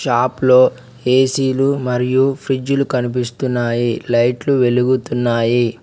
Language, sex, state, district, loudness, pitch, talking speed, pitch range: Telugu, male, Telangana, Mahabubabad, -16 LUFS, 125 Hz, 80 wpm, 120-130 Hz